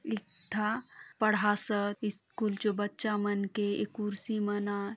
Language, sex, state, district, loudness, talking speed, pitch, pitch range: Halbi, female, Chhattisgarh, Bastar, -32 LUFS, 135 wpm, 210 Hz, 205-215 Hz